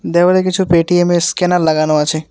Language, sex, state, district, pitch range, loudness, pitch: Bengali, male, West Bengal, Alipurduar, 155-180 Hz, -13 LUFS, 175 Hz